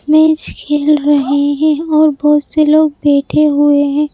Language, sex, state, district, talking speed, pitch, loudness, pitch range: Hindi, male, Madhya Pradesh, Bhopal, 160 wpm, 295 Hz, -12 LUFS, 290-305 Hz